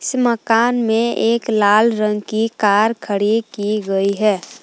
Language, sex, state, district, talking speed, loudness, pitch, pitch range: Hindi, female, Jharkhand, Palamu, 140 wpm, -17 LUFS, 215 Hz, 205-230 Hz